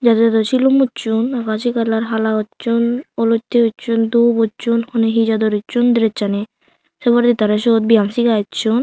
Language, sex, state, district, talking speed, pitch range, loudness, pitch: Chakma, female, Tripura, Unakoti, 170 wpm, 220-240 Hz, -16 LUFS, 230 Hz